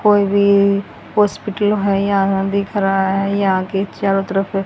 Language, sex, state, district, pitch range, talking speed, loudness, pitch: Hindi, female, Haryana, Rohtak, 195-200 Hz, 155 wpm, -17 LUFS, 200 Hz